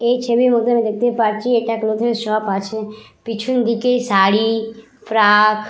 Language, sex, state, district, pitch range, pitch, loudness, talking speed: Bengali, female, West Bengal, Purulia, 215-240 Hz, 225 Hz, -17 LUFS, 160 wpm